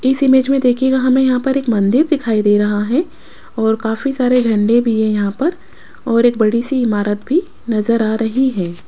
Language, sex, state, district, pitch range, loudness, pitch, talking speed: Hindi, female, Rajasthan, Jaipur, 220-265 Hz, -15 LUFS, 235 Hz, 210 wpm